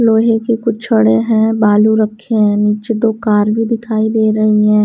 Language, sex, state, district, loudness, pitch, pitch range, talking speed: Hindi, female, Haryana, Rohtak, -13 LUFS, 220 Hz, 210-225 Hz, 200 wpm